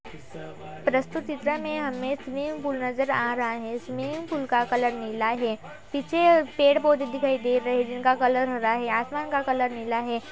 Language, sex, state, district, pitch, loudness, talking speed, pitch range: Hindi, female, Uttar Pradesh, Budaun, 260 Hz, -25 LUFS, 180 wpm, 240-285 Hz